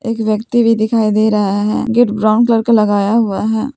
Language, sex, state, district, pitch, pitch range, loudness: Hindi, female, Jharkhand, Palamu, 220 Hz, 210-230 Hz, -13 LUFS